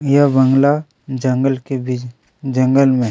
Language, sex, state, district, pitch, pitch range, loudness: Hindi, male, Chhattisgarh, Kabirdham, 135 Hz, 130-140 Hz, -16 LUFS